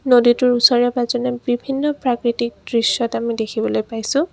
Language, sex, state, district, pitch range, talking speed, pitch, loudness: Assamese, female, Assam, Kamrup Metropolitan, 235-250 Hz, 125 wpm, 245 Hz, -18 LUFS